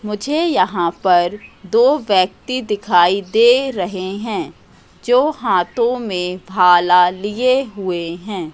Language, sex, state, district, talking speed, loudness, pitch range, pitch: Hindi, female, Madhya Pradesh, Katni, 110 wpm, -16 LUFS, 180-245 Hz, 200 Hz